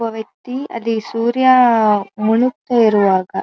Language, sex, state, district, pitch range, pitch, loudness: Kannada, female, Karnataka, Dharwad, 215-245 Hz, 230 Hz, -15 LUFS